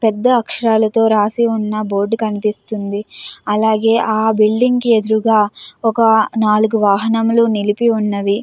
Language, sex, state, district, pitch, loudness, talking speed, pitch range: Telugu, female, Andhra Pradesh, Guntur, 220 Hz, -15 LUFS, 115 wpm, 210-225 Hz